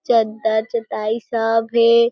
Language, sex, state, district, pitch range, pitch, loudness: Chhattisgarhi, female, Chhattisgarh, Jashpur, 220-235 Hz, 225 Hz, -18 LUFS